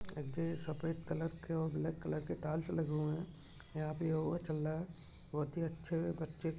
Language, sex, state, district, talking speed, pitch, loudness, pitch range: Hindi, male, Maharashtra, Dhule, 190 wpm, 160 Hz, -40 LUFS, 155-165 Hz